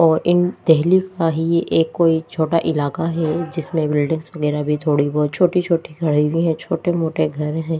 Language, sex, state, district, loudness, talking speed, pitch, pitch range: Hindi, female, Delhi, New Delhi, -19 LUFS, 175 wpm, 160 Hz, 155-170 Hz